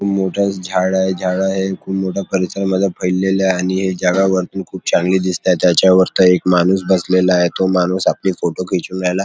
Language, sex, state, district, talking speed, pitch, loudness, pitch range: Marathi, male, Maharashtra, Chandrapur, 190 wpm, 95 Hz, -16 LUFS, 90-95 Hz